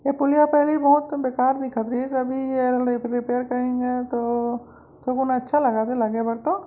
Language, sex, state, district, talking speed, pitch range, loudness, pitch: Chhattisgarhi, female, Chhattisgarh, Raigarh, 205 wpm, 245-275 Hz, -22 LUFS, 250 Hz